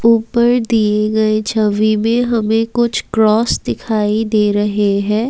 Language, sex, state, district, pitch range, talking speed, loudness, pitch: Hindi, female, Assam, Kamrup Metropolitan, 210-230 Hz, 135 wpm, -15 LUFS, 220 Hz